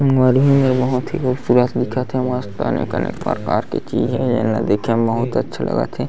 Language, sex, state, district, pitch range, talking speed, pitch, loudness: Chhattisgarhi, male, Chhattisgarh, Sarguja, 120-130 Hz, 225 wpm, 125 Hz, -18 LUFS